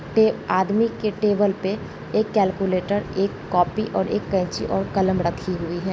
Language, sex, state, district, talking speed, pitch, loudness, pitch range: Hindi, female, Bihar, Sitamarhi, 170 wpm, 195 Hz, -22 LUFS, 185-210 Hz